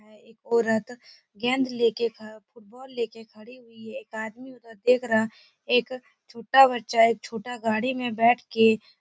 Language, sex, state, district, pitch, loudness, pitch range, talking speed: Hindi, female, Uttar Pradesh, Etah, 230 Hz, -24 LUFS, 225-245 Hz, 195 wpm